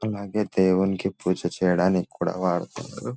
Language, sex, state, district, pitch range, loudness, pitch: Telugu, male, Telangana, Nalgonda, 90-100 Hz, -24 LUFS, 95 Hz